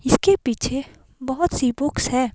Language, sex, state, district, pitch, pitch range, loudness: Hindi, female, Himachal Pradesh, Shimla, 265 Hz, 255-285 Hz, -21 LUFS